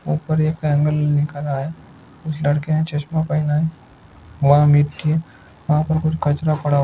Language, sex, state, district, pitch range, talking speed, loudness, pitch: Hindi, male, Andhra Pradesh, Chittoor, 145-155 Hz, 165 wpm, -19 LUFS, 150 Hz